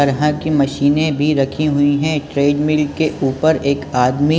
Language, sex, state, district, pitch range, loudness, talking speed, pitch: Hindi, male, Chhattisgarh, Balrampur, 140-155 Hz, -16 LUFS, 190 wpm, 145 Hz